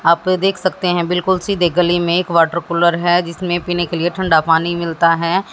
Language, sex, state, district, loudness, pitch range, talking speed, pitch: Hindi, female, Haryana, Jhajjar, -16 LUFS, 170-180 Hz, 230 wpm, 175 Hz